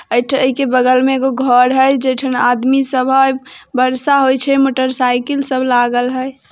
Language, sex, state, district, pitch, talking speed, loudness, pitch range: Hindi, female, Bihar, Darbhanga, 260 Hz, 185 wpm, -13 LUFS, 255-270 Hz